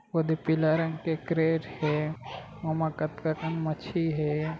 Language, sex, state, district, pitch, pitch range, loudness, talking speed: Chhattisgarhi, male, Chhattisgarh, Raigarh, 160 Hz, 155-165 Hz, -29 LUFS, 170 wpm